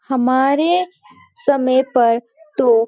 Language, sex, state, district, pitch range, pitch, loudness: Hindi, female, Uttarakhand, Uttarkashi, 250-320 Hz, 265 Hz, -17 LUFS